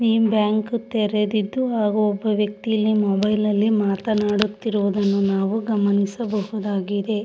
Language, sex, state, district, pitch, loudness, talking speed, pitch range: Kannada, female, Karnataka, Shimoga, 210 Hz, -21 LUFS, 85 wpm, 205-220 Hz